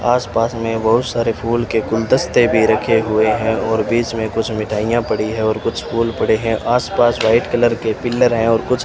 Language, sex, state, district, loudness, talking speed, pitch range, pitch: Hindi, male, Rajasthan, Bikaner, -16 LUFS, 215 wpm, 110-120 Hz, 115 Hz